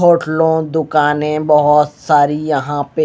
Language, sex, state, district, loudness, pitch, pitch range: Hindi, male, Haryana, Rohtak, -14 LUFS, 150 Hz, 150-160 Hz